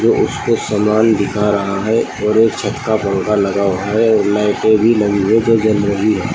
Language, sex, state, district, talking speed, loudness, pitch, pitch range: Hindi, male, Uttar Pradesh, Saharanpur, 215 wpm, -14 LUFS, 105 Hz, 100-110 Hz